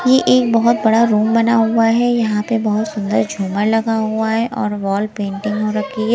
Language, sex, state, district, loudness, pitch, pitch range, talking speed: Hindi, female, Himachal Pradesh, Shimla, -16 LUFS, 220 Hz, 210-230 Hz, 215 wpm